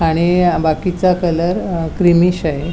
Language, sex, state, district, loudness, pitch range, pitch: Marathi, female, Goa, North and South Goa, -15 LUFS, 165-180 Hz, 175 Hz